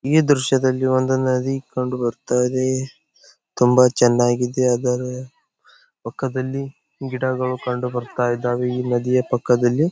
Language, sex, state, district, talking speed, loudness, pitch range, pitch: Kannada, male, Karnataka, Gulbarga, 115 wpm, -20 LUFS, 125-130 Hz, 125 Hz